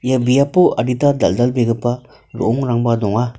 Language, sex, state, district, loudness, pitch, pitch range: Garo, male, Meghalaya, North Garo Hills, -16 LUFS, 125 Hz, 120-130 Hz